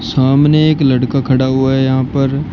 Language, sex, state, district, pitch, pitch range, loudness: Hindi, male, Uttar Pradesh, Shamli, 135 Hz, 130-140 Hz, -12 LUFS